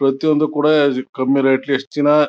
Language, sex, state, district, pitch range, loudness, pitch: Kannada, male, Karnataka, Chamarajanagar, 135-150 Hz, -16 LUFS, 140 Hz